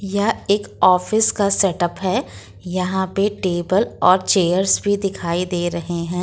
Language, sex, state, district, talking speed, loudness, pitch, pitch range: Hindi, female, Jharkhand, Ranchi, 165 wpm, -19 LUFS, 185 Hz, 175-200 Hz